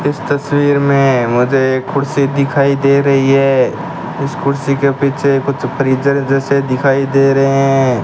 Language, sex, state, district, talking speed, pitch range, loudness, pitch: Hindi, male, Rajasthan, Bikaner, 155 wpm, 135-140 Hz, -13 LUFS, 135 Hz